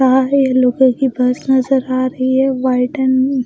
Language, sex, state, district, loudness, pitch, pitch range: Hindi, female, Bihar, West Champaran, -14 LUFS, 260 Hz, 255-265 Hz